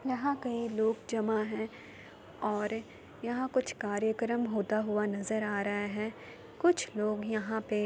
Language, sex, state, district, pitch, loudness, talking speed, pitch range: Hindi, female, Uttar Pradesh, Jalaun, 220 Hz, -33 LUFS, 155 wpm, 210-235 Hz